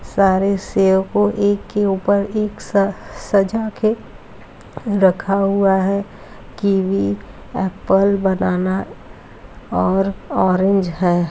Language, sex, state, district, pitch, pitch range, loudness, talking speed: Hindi, female, Uttar Pradesh, Deoria, 195 Hz, 185-200 Hz, -18 LUFS, 95 wpm